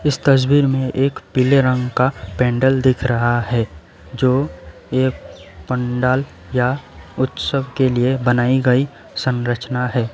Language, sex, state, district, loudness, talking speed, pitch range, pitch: Hindi, male, West Bengal, Alipurduar, -18 LUFS, 130 wpm, 120-130 Hz, 130 Hz